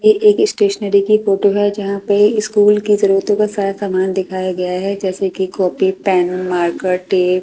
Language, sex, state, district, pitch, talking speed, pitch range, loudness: Hindi, female, Delhi, New Delhi, 200 Hz, 195 wpm, 185-205 Hz, -15 LUFS